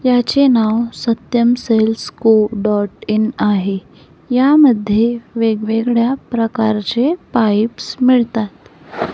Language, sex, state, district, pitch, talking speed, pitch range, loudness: Marathi, female, Maharashtra, Gondia, 230 Hz, 85 wpm, 215-245 Hz, -15 LUFS